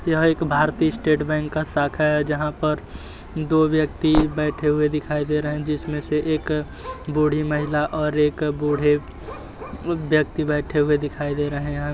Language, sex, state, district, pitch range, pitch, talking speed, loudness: Hindi, male, Uttar Pradesh, Jyotiba Phule Nagar, 150-155 Hz, 150 Hz, 165 wpm, -22 LUFS